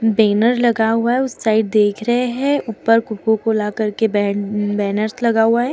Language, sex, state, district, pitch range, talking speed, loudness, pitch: Hindi, female, Bihar, Vaishali, 210-235 Hz, 180 wpm, -17 LUFS, 220 Hz